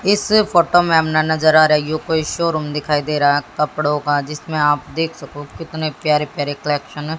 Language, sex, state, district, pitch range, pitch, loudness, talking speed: Hindi, female, Haryana, Jhajjar, 150-160 Hz, 155 Hz, -17 LUFS, 215 wpm